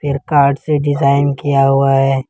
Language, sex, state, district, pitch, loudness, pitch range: Hindi, male, Jharkhand, Ranchi, 140 Hz, -13 LUFS, 135-145 Hz